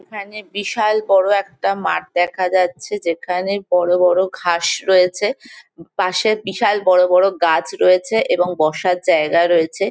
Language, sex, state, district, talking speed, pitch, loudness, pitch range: Bengali, female, West Bengal, Jalpaiguri, 140 wpm, 185 Hz, -17 LUFS, 175-200 Hz